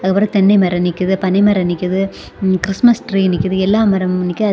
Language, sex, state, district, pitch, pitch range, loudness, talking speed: Tamil, female, Tamil Nadu, Kanyakumari, 190 Hz, 185-200 Hz, -15 LUFS, 170 wpm